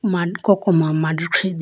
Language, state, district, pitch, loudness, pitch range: Idu Mishmi, Arunachal Pradesh, Lower Dibang Valley, 175 Hz, -19 LUFS, 165-200 Hz